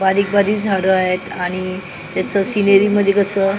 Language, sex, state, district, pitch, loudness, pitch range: Marathi, female, Maharashtra, Mumbai Suburban, 195 Hz, -16 LUFS, 185-200 Hz